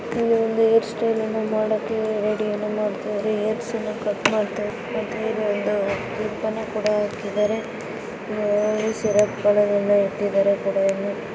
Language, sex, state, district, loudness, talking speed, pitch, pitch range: Kannada, female, Karnataka, Dakshina Kannada, -23 LUFS, 115 wpm, 215 Hz, 205-220 Hz